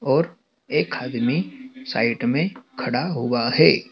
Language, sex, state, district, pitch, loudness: Hindi, male, Madhya Pradesh, Dhar, 145 Hz, -22 LUFS